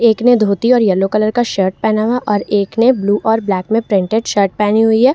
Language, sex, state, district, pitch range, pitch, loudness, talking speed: Hindi, female, Jharkhand, Ranchi, 200-230 Hz, 215 Hz, -14 LUFS, 255 wpm